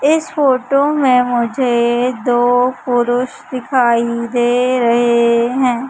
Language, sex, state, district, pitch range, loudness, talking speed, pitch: Hindi, female, Madhya Pradesh, Umaria, 240-255 Hz, -14 LUFS, 100 wpm, 245 Hz